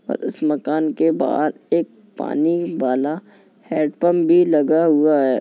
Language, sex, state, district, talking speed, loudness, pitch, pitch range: Hindi, male, Uttar Pradesh, Jalaun, 155 wpm, -19 LUFS, 155 Hz, 150-170 Hz